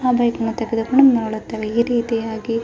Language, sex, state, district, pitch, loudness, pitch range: Kannada, female, Karnataka, Raichur, 230 Hz, -19 LUFS, 225-240 Hz